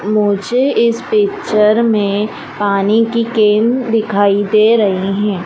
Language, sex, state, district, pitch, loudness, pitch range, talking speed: Hindi, female, Madhya Pradesh, Dhar, 210 Hz, -13 LUFS, 205-230 Hz, 120 wpm